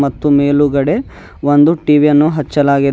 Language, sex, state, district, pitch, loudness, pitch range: Kannada, female, Karnataka, Bidar, 145 Hz, -12 LUFS, 140-150 Hz